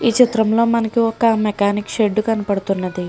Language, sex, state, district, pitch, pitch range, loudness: Telugu, female, Andhra Pradesh, Srikakulam, 220 Hz, 205-230 Hz, -17 LUFS